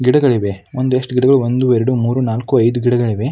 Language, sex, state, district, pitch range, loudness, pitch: Kannada, male, Karnataka, Mysore, 120-130 Hz, -15 LUFS, 125 Hz